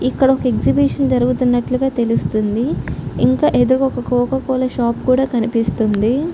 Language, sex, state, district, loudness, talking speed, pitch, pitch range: Telugu, female, Andhra Pradesh, Chittoor, -16 LUFS, 125 wpm, 245 Hz, 225-260 Hz